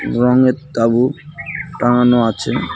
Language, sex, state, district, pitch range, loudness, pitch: Bengali, male, West Bengal, Cooch Behar, 120-145 Hz, -15 LUFS, 125 Hz